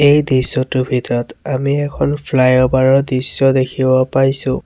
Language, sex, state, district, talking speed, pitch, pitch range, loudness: Assamese, male, Assam, Sonitpur, 130 wpm, 130 Hz, 130-140 Hz, -14 LUFS